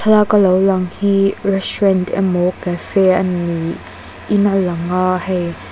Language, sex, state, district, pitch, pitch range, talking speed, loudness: Mizo, female, Mizoram, Aizawl, 185 Hz, 175-195 Hz, 145 wpm, -16 LUFS